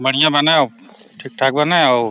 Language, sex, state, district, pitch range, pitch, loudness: Hindi, male, Uttar Pradesh, Deoria, 135-205 Hz, 150 Hz, -14 LUFS